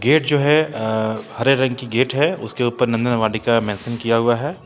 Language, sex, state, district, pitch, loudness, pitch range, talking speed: Hindi, male, Jharkhand, Ranchi, 120 Hz, -19 LUFS, 110-135 Hz, 220 wpm